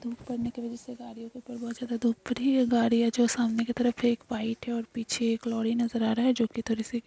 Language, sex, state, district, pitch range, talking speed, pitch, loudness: Hindi, female, Chhattisgarh, Bastar, 230-240 Hz, 290 wpm, 235 Hz, -28 LUFS